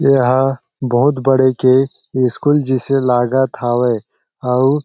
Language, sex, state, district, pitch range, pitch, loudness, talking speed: Chhattisgarhi, male, Chhattisgarh, Sarguja, 125-135 Hz, 130 Hz, -15 LUFS, 125 wpm